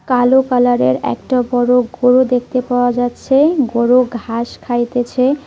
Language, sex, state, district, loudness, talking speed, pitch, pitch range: Bengali, female, West Bengal, Cooch Behar, -14 LUFS, 130 wpm, 245 Hz, 240-255 Hz